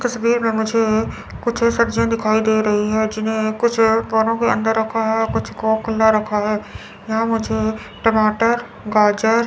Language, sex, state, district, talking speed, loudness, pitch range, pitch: Hindi, female, Chandigarh, Chandigarh, 160 wpm, -18 LUFS, 220-230 Hz, 220 Hz